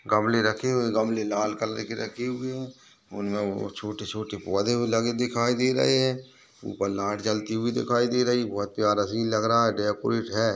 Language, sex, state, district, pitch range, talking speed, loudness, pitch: Hindi, male, Chhattisgarh, Balrampur, 105-120 Hz, 200 wpm, -26 LUFS, 110 Hz